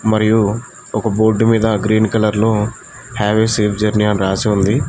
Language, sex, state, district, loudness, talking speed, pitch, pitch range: Telugu, male, Telangana, Mahabubabad, -15 LUFS, 170 wpm, 110 Hz, 105-110 Hz